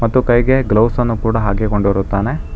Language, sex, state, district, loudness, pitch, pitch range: Kannada, male, Karnataka, Bangalore, -15 LUFS, 115 Hz, 105-120 Hz